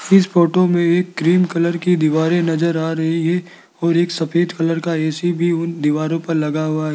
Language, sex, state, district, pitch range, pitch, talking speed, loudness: Hindi, male, Rajasthan, Jaipur, 160-175 Hz, 170 Hz, 215 wpm, -17 LUFS